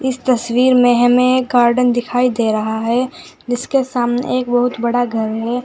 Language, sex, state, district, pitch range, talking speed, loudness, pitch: Hindi, female, Uttar Pradesh, Saharanpur, 240-255 Hz, 170 wpm, -15 LUFS, 245 Hz